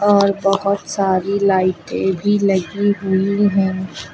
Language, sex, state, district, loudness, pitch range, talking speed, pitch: Hindi, female, Uttar Pradesh, Lucknow, -17 LUFS, 190-200 Hz, 115 wpm, 195 Hz